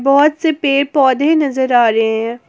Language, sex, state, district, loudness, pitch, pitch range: Hindi, female, Jharkhand, Garhwa, -13 LUFS, 275 Hz, 240-290 Hz